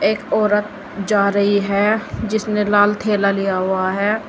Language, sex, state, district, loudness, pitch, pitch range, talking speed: Hindi, female, Uttar Pradesh, Saharanpur, -17 LUFS, 205 Hz, 200-210 Hz, 155 wpm